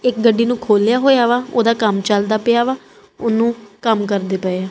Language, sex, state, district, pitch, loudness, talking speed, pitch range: Punjabi, female, Punjab, Kapurthala, 230 Hz, -16 LUFS, 190 wpm, 205-240 Hz